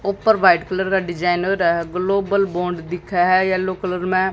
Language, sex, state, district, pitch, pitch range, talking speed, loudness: Hindi, female, Haryana, Jhajjar, 185 Hz, 175-190 Hz, 180 wpm, -19 LUFS